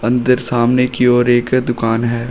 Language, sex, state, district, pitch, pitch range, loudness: Hindi, male, Uttar Pradesh, Shamli, 120 Hz, 120-125 Hz, -14 LUFS